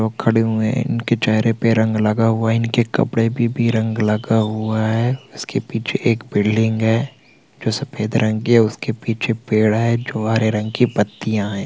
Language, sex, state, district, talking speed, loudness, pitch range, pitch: Hindi, male, Bihar, Vaishali, 205 wpm, -18 LUFS, 110-115 Hz, 115 Hz